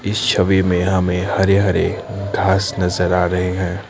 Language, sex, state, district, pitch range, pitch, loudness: Hindi, male, Assam, Kamrup Metropolitan, 90-100 Hz, 95 Hz, -17 LUFS